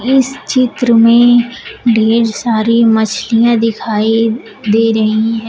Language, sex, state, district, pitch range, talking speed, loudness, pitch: Hindi, female, Uttar Pradesh, Shamli, 225-240 Hz, 110 wpm, -12 LUFS, 230 Hz